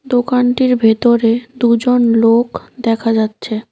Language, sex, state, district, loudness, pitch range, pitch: Bengali, female, West Bengal, Cooch Behar, -14 LUFS, 225-245 Hz, 235 Hz